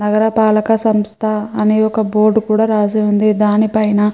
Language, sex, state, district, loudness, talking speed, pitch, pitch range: Telugu, female, Andhra Pradesh, Chittoor, -14 LUFS, 145 wpm, 215 Hz, 210-220 Hz